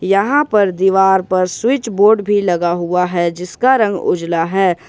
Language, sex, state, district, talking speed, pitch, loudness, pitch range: Hindi, male, Jharkhand, Ranchi, 170 wpm, 190 Hz, -14 LUFS, 175-205 Hz